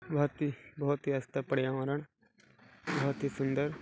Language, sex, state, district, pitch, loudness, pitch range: Hindi, male, Chhattisgarh, Balrampur, 140 Hz, -34 LUFS, 135-145 Hz